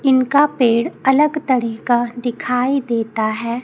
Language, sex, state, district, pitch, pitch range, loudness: Hindi, female, Chhattisgarh, Raipur, 245 Hz, 235-270 Hz, -17 LUFS